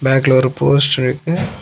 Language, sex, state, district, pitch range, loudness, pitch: Tamil, male, Tamil Nadu, Kanyakumari, 130-140 Hz, -14 LUFS, 135 Hz